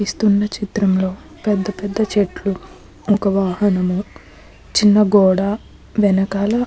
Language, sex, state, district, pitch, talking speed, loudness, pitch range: Telugu, female, Andhra Pradesh, Krishna, 205 Hz, 90 wpm, -18 LUFS, 195-210 Hz